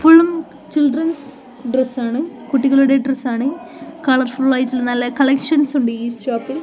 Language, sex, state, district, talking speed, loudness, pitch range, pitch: Malayalam, female, Kerala, Kozhikode, 110 wpm, -17 LUFS, 255-300 Hz, 270 Hz